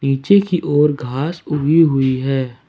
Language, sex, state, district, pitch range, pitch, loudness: Hindi, male, Jharkhand, Ranchi, 135-160 Hz, 145 Hz, -16 LUFS